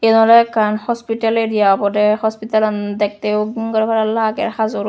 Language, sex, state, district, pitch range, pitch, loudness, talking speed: Chakma, female, Tripura, West Tripura, 210-225 Hz, 220 Hz, -16 LUFS, 145 wpm